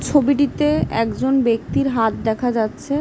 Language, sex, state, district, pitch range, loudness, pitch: Bengali, female, West Bengal, Jhargram, 225-285 Hz, -19 LUFS, 255 Hz